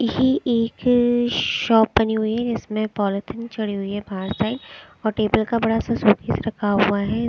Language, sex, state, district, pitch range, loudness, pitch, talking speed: Hindi, female, Odisha, Sambalpur, 205-235 Hz, -21 LUFS, 220 Hz, 190 wpm